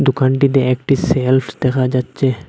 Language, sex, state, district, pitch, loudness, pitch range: Bengali, male, Assam, Hailakandi, 130 Hz, -16 LUFS, 125-135 Hz